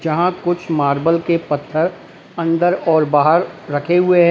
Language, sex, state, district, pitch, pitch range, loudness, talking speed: Hindi, male, Uttar Pradesh, Lalitpur, 165 Hz, 155-175 Hz, -17 LUFS, 155 wpm